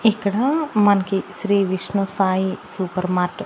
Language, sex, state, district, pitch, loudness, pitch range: Telugu, female, Andhra Pradesh, Annamaya, 195 Hz, -20 LUFS, 185-210 Hz